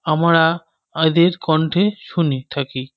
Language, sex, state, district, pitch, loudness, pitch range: Bengali, male, West Bengal, North 24 Parganas, 160 Hz, -17 LUFS, 145-170 Hz